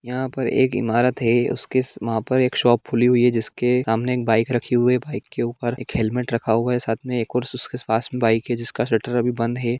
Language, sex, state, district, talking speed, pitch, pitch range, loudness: Hindi, male, Jharkhand, Sahebganj, 245 wpm, 120 Hz, 115-125 Hz, -21 LUFS